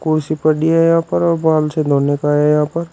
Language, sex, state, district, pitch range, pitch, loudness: Hindi, male, Uttar Pradesh, Shamli, 150-165 Hz, 155 Hz, -15 LUFS